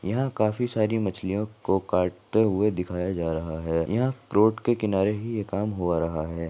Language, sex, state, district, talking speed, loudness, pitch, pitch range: Hindi, female, Rajasthan, Nagaur, 195 wpm, -26 LUFS, 100 Hz, 90-110 Hz